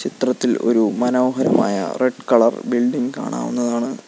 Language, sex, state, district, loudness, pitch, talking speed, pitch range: Malayalam, male, Kerala, Kollam, -19 LUFS, 120 Hz, 105 wpm, 115-125 Hz